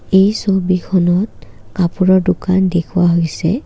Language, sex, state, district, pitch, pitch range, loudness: Assamese, female, Assam, Kamrup Metropolitan, 185 Hz, 175-195 Hz, -15 LUFS